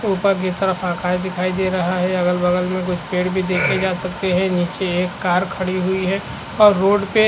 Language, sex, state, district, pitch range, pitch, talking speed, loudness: Hindi, female, Chhattisgarh, Korba, 180-190 Hz, 185 Hz, 240 wpm, -19 LUFS